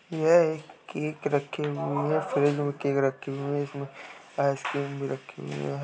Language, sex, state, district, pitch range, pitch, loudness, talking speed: Hindi, male, Uttar Pradesh, Jalaun, 140-150 Hz, 140 Hz, -28 LUFS, 185 wpm